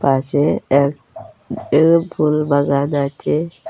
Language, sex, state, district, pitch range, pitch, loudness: Bengali, female, Assam, Hailakandi, 140-155 Hz, 145 Hz, -17 LUFS